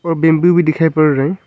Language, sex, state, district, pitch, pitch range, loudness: Hindi, male, Arunachal Pradesh, Longding, 160 Hz, 155-170 Hz, -13 LUFS